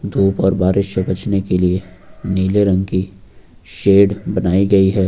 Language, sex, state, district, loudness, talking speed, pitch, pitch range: Hindi, male, Uttar Pradesh, Lucknow, -16 LUFS, 165 wpm, 95 Hz, 95-100 Hz